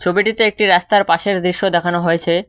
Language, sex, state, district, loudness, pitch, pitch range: Bengali, male, West Bengal, Cooch Behar, -15 LUFS, 180 Hz, 170-205 Hz